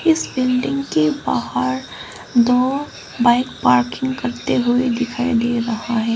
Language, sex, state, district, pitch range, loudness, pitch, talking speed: Hindi, female, Arunachal Pradesh, Lower Dibang Valley, 155-255 Hz, -19 LUFS, 240 Hz, 125 wpm